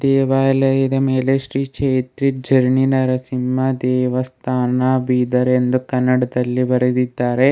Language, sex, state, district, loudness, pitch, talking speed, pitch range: Kannada, male, Karnataka, Bidar, -17 LUFS, 130 Hz, 90 wpm, 125-135 Hz